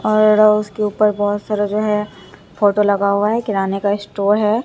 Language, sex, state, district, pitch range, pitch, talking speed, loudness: Hindi, male, Bihar, Katihar, 205-215 Hz, 210 Hz, 195 wpm, -16 LUFS